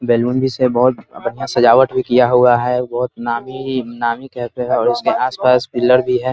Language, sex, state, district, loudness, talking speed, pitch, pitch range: Hindi, male, Bihar, Muzaffarpur, -16 LUFS, 190 wpm, 125 Hz, 120-130 Hz